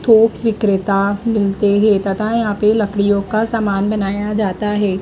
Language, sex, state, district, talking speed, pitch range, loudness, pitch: Hindi, female, Madhya Pradesh, Dhar, 155 wpm, 200-215 Hz, -16 LUFS, 210 Hz